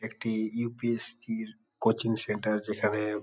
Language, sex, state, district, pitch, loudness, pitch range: Bengali, male, West Bengal, Kolkata, 115 Hz, -30 LUFS, 105-120 Hz